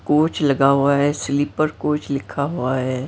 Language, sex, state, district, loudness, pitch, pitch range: Hindi, female, Maharashtra, Mumbai Suburban, -19 LUFS, 140 Hz, 135-150 Hz